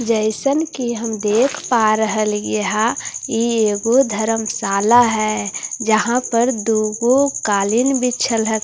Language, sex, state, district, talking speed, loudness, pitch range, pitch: Hindi, female, Bihar, Katihar, 130 wpm, -17 LUFS, 215-245 Hz, 225 Hz